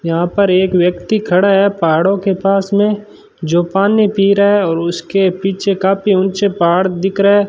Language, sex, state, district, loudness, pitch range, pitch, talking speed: Hindi, male, Rajasthan, Bikaner, -13 LUFS, 175-200 Hz, 195 Hz, 190 wpm